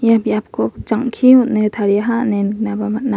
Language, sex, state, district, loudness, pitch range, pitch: Garo, female, Meghalaya, West Garo Hills, -16 LUFS, 210-235 Hz, 220 Hz